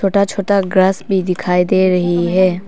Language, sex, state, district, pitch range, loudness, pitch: Hindi, female, Arunachal Pradesh, Papum Pare, 180-195 Hz, -15 LUFS, 185 Hz